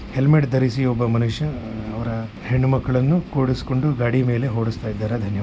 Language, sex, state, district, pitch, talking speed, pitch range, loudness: Kannada, male, Karnataka, Shimoga, 125 Hz, 130 wpm, 115-130 Hz, -21 LUFS